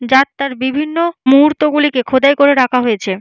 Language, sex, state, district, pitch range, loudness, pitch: Bengali, female, West Bengal, Jalpaiguri, 255-295 Hz, -13 LUFS, 275 Hz